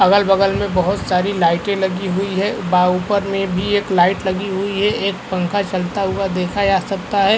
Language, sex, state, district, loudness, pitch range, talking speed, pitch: Hindi, male, Uttar Pradesh, Varanasi, -18 LUFS, 185-200 Hz, 210 wpm, 195 Hz